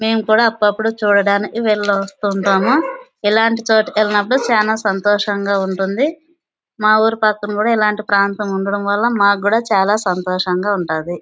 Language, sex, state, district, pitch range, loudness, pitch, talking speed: Telugu, female, Andhra Pradesh, Anantapur, 200-220 Hz, -16 LUFS, 210 Hz, 150 wpm